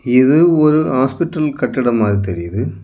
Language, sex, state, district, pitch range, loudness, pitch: Tamil, male, Tamil Nadu, Kanyakumari, 105-155 Hz, -15 LUFS, 130 Hz